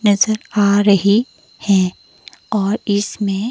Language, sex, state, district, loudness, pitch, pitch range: Hindi, female, Himachal Pradesh, Shimla, -16 LUFS, 205 Hz, 200-215 Hz